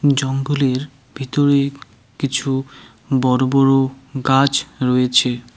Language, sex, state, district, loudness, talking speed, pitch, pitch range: Bengali, male, West Bengal, Cooch Behar, -18 LUFS, 75 wpm, 135 Hz, 130-140 Hz